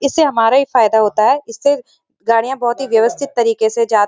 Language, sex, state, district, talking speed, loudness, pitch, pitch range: Hindi, female, Uttarakhand, Uttarkashi, 220 wpm, -14 LUFS, 230 Hz, 225-270 Hz